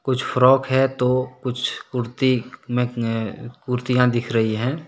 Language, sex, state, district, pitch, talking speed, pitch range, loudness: Hindi, male, Jharkhand, Deoghar, 125 Hz, 125 wpm, 120-130 Hz, -21 LUFS